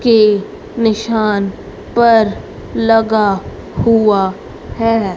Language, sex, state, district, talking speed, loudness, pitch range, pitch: Hindi, female, Haryana, Rohtak, 70 wpm, -14 LUFS, 205-225 Hz, 220 Hz